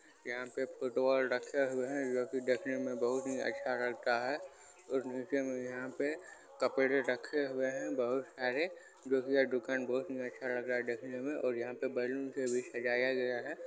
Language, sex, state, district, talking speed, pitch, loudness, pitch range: Hindi, male, Bihar, Supaul, 215 wpm, 130 Hz, -36 LUFS, 125-130 Hz